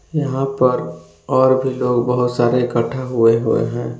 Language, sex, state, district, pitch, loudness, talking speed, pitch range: Hindi, male, Jharkhand, Palamu, 125 Hz, -17 LUFS, 165 wpm, 120-130 Hz